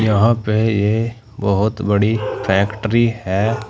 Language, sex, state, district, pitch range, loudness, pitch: Hindi, male, Uttar Pradesh, Saharanpur, 105-115 Hz, -18 LUFS, 110 Hz